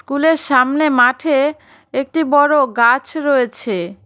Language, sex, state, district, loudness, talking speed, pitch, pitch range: Bengali, female, West Bengal, Cooch Behar, -15 LUFS, 105 wpm, 275 Hz, 245-295 Hz